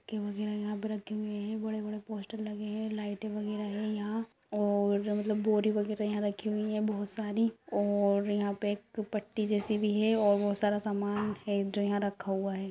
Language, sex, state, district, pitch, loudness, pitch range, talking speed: Hindi, female, Uttar Pradesh, Deoria, 210 Hz, -32 LUFS, 205-215 Hz, 220 wpm